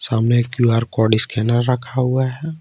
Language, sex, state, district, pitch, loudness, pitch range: Hindi, male, Jharkhand, Ranchi, 120 Hz, -17 LUFS, 115-130 Hz